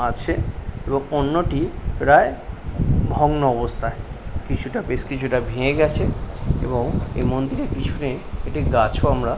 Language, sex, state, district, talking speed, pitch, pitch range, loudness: Bengali, male, West Bengal, Paschim Medinipur, 120 wpm, 125 Hz, 115-140 Hz, -22 LUFS